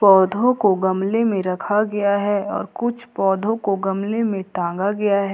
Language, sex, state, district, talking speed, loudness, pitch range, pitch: Hindi, female, Jharkhand, Ranchi, 180 wpm, -20 LUFS, 195-215 Hz, 200 Hz